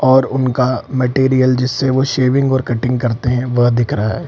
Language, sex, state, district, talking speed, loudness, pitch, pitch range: Hindi, male, Bihar, Samastipur, 195 wpm, -15 LUFS, 130 Hz, 125-130 Hz